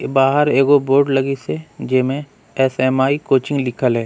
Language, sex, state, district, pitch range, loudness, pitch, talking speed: Surgujia, male, Chhattisgarh, Sarguja, 130-140 Hz, -17 LUFS, 135 Hz, 175 wpm